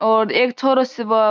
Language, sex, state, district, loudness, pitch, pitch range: Marwari, female, Rajasthan, Churu, -17 LUFS, 235 Hz, 220-255 Hz